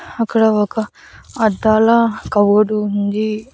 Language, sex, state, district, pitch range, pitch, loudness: Telugu, female, Andhra Pradesh, Annamaya, 210-225 Hz, 215 Hz, -15 LUFS